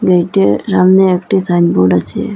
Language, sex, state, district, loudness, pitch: Bengali, female, Assam, Hailakandi, -11 LUFS, 175 Hz